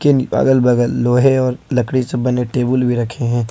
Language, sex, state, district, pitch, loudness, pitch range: Hindi, male, Jharkhand, Ranchi, 125 Hz, -16 LUFS, 120-130 Hz